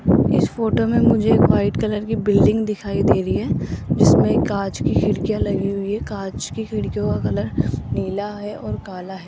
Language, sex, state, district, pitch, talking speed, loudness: Hindi, female, Rajasthan, Jaipur, 195 Hz, 195 wpm, -20 LUFS